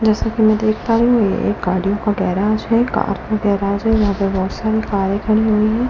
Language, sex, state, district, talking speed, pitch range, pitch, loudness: Hindi, female, Delhi, New Delhi, 255 wpm, 200-220 Hz, 215 Hz, -17 LUFS